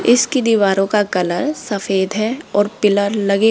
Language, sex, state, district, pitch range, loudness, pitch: Hindi, female, Rajasthan, Jaipur, 200-225 Hz, -17 LUFS, 205 Hz